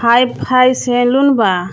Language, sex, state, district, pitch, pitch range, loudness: Bhojpuri, female, Jharkhand, Palamu, 245 Hz, 230-255 Hz, -12 LUFS